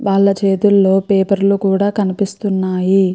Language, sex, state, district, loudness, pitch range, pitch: Telugu, female, Andhra Pradesh, Chittoor, -14 LUFS, 190-200 Hz, 195 Hz